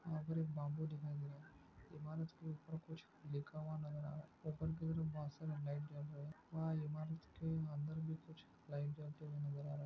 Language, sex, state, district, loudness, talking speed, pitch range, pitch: Hindi, male, Chhattisgarh, Bastar, -47 LUFS, 245 wpm, 145-160 Hz, 155 Hz